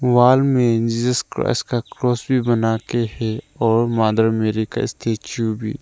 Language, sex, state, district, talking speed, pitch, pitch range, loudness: Hindi, male, Arunachal Pradesh, Lower Dibang Valley, 165 wpm, 115 Hz, 110-125 Hz, -19 LUFS